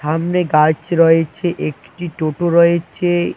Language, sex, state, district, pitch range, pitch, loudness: Bengali, male, West Bengal, Cooch Behar, 155-175 Hz, 165 Hz, -16 LUFS